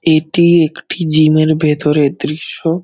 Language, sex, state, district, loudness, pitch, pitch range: Bengali, male, West Bengal, Dakshin Dinajpur, -13 LUFS, 155 Hz, 155-165 Hz